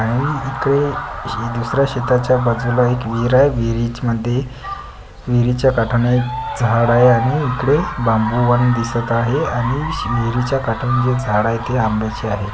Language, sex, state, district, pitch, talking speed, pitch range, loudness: Marathi, male, Maharashtra, Pune, 120 Hz, 140 wpm, 115-130 Hz, -17 LUFS